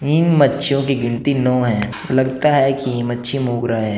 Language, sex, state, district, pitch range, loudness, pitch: Hindi, male, Uttar Pradesh, Shamli, 120-140 Hz, -17 LUFS, 130 Hz